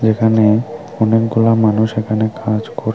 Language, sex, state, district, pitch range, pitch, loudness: Bengali, female, Tripura, Unakoti, 110-115 Hz, 110 Hz, -15 LUFS